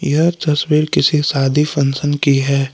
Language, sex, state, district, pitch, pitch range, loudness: Hindi, male, Jharkhand, Palamu, 145 Hz, 140-150 Hz, -15 LUFS